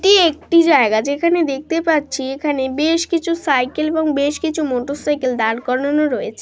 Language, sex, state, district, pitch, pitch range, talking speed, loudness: Bengali, female, West Bengal, Dakshin Dinajpur, 295 Hz, 270-330 Hz, 150 wpm, -17 LUFS